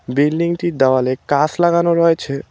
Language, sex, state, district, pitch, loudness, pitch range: Bengali, male, West Bengal, Cooch Behar, 150 Hz, -16 LUFS, 135-170 Hz